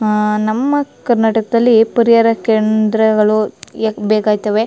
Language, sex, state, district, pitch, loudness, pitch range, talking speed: Kannada, female, Karnataka, Chamarajanagar, 220 Hz, -14 LUFS, 215-230 Hz, 90 wpm